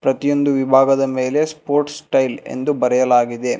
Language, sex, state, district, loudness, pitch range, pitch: Kannada, male, Karnataka, Bangalore, -17 LUFS, 130-145 Hz, 135 Hz